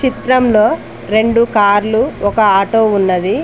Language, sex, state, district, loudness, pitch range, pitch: Telugu, female, Telangana, Mahabubabad, -12 LUFS, 205-230 Hz, 215 Hz